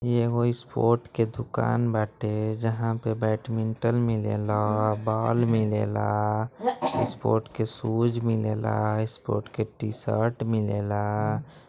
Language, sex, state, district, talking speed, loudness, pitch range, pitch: Bhojpuri, male, Uttar Pradesh, Deoria, 105 wpm, -27 LUFS, 105-120 Hz, 110 Hz